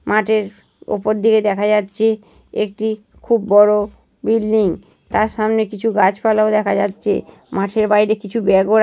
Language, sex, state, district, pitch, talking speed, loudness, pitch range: Bengali, female, West Bengal, Jhargram, 215 Hz, 145 wpm, -17 LUFS, 205-220 Hz